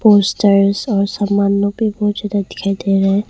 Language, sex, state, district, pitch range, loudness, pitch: Hindi, female, Arunachal Pradesh, Longding, 195-205 Hz, -15 LUFS, 200 Hz